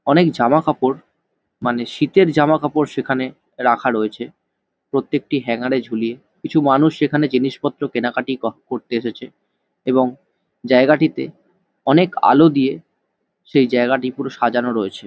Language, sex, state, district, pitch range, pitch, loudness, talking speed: Bengali, male, West Bengal, Jalpaiguri, 120-145 Hz, 130 Hz, -18 LUFS, 125 wpm